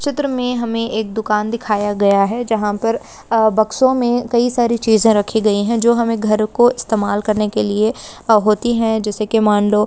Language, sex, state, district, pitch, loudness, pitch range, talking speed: Hindi, female, West Bengal, Purulia, 220 Hz, -16 LUFS, 210-235 Hz, 195 wpm